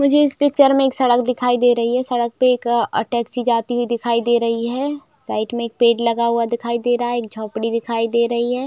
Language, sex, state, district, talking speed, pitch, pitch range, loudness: Hindi, female, Chhattisgarh, Raigarh, 240 wpm, 240 Hz, 235-250 Hz, -18 LUFS